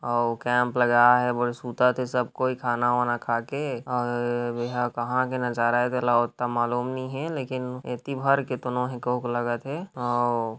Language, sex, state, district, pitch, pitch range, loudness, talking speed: Chhattisgarhi, male, Chhattisgarh, Rajnandgaon, 125 Hz, 120-125 Hz, -25 LUFS, 190 wpm